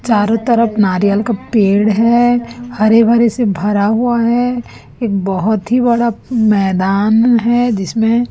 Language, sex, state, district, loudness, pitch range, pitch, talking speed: Hindi, female, Chhattisgarh, Raipur, -13 LUFS, 210-235 Hz, 230 Hz, 135 wpm